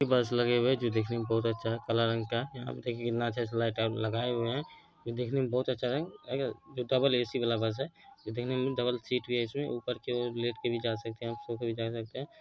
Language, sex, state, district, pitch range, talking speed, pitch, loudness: Hindi, male, Bihar, Araria, 115-130 Hz, 275 wpm, 120 Hz, -32 LUFS